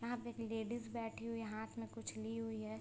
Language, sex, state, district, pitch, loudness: Hindi, female, Bihar, Sitamarhi, 225 Hz, -45 LUFS